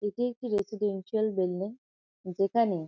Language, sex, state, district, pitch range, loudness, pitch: Bengali, female, West Bengal, Kolkata, 190-220 Hz, -30 LUFS, 205 Hz